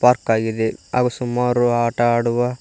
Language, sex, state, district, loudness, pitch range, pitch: Kannada, male, Karnataka, Koppal, -19 LUFS, 120-125 Hz, 120 Hz